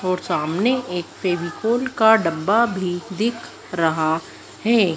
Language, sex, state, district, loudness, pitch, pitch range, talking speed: Hindi, female, Madhya Pradesh, Dhar, -21 LUFS, 185 Hz, 175-230 Hz, 120 wpm